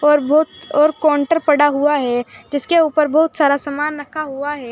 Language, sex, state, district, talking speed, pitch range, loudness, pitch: Hindi, female, Uttar Pradesh, Saharanpur, 190 wpm, 285-310 Hz, -16 LUFS, 295 Hz